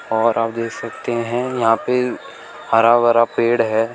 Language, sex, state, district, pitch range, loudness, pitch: Hindi, male, Uttar Pradesh, Shamli, 115-120 Hz, -18 LUFS, 115 Hz